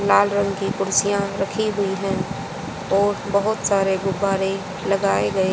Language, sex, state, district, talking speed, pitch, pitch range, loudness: Hindi, female, Haryana, Jhajjar, 140 wpm, 195 Hz, 190-200 Hz, -21 LUFS